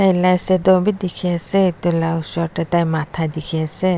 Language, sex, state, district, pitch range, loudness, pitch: Nagamese, female, Nagaland, Dimapur, 165-185 Hz, -18 LUFS, 175 Hz